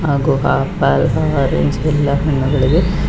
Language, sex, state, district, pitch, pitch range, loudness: Kannada, female, Karnataka, Bangalore, 140 Hz, 130-150 Hz, -15 LUFS